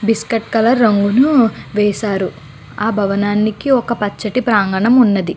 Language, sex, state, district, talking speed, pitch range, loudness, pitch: Telugu, female, Andhra Pradesh, Guntur, 125 wpm, 200-235 Hz, -15 LUFS, 215 Hz